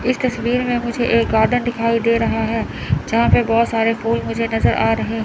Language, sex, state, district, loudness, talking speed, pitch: Hindi, female, Chandigarh, Chandigarh, -18 LUFS, 215 wpm, 230 Hz